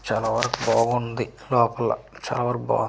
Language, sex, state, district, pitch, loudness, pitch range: Telugu, male, Andhra Pradesh, Manyam, 115 Hz, -24 LUFS, 115-120 Hz